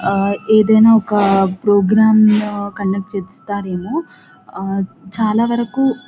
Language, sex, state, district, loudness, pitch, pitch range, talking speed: Telugu, female, Telangana, Nalgonda, -15 LUFS, 205 Hz, 195-220 Hz, 80 wpm